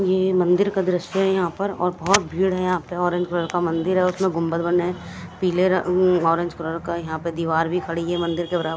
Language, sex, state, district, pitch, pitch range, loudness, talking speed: Hindi, female, Punjab, Kapurthala, 175 Hz, 170-185 Hz, -22 LUFS, 230 wpm